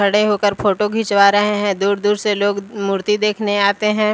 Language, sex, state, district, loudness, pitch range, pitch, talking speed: Hindi, female, Bihar, Patna, -16 LUFS, 200-210 Hz, 205 Hz, 190 wpm